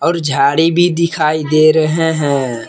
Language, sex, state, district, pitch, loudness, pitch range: Hindi, male, Jharkhand, Palamu, 155 Hz, -13 LUFS, 145-165 Hz